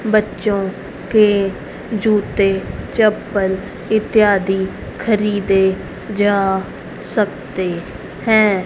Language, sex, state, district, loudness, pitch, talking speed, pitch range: Hindi, female, Haryana, Rohtak, -17 LUFS, 205 Hz, 60 wpm, 190-215 Hz